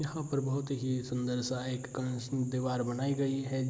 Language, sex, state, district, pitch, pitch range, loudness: Hindi, male, Bihar, Saharsa, 130 Hz, 125-135 Hz, -34 LUFS